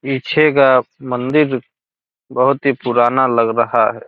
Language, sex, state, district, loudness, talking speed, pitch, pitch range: Hindi, male, Bihar, Gopalganj, -15 LUFS, 130 wpm, 130 Hz, 120-135 Hz